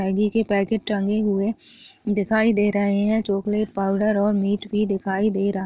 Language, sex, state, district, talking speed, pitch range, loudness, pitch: Chhattisgarhi, female, Chhattisgarh, Jashpur, 200 wpm, 200-215 Hz, -22 LUFS, 205 Hz